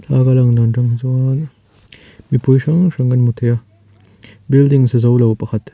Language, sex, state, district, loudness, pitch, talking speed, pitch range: Mizo, male, Mizoram, Aizawl, -14 LUFS, 120 Hz, 165 wpm, 110-130 Hz